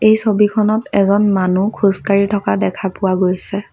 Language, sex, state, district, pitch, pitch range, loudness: Assamese, female, Assam, Kamrup Metropolitan, 200 Hz, 185-210 Hz, -15 LUFS